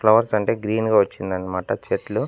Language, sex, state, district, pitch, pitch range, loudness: Telugu, male, Andhra Pradesh, Annamaya, 105 Hz, 95-110 Hz, -21 LUFS